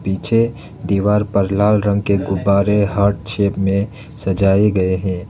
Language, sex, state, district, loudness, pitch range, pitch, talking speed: Hindi, male, Arunachal Pradesh, Lower Dibang Valley, -17 LUFS, 95-105 Hz, 100 Hz, 145 wpm